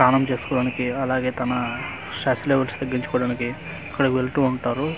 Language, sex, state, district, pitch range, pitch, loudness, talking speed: Telugu, male, Andhra Pradesh, Manyam, 125-135 Hz, 130 Hz, -23 LUFS, 120 wpm